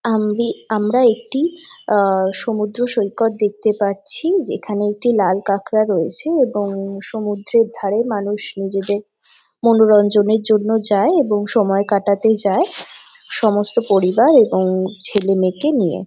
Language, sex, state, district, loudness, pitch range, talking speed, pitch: Bengali, female, West Bengal, Jhargram, -17 LUFS, 200-230 Hz, 110 wpm, 210 Hz